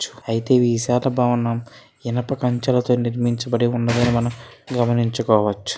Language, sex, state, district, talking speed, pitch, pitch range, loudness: Telugu, male, Andhra Pradesh, Srikakulam, 95 wpm, 120 Hz, 115-125 Hz, -20 LUFS